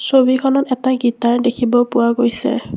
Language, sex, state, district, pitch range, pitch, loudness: Assamese, female, Assam, Kamrup Metropolitan, 240-260 Hz, 245 Hz, -16 LUFS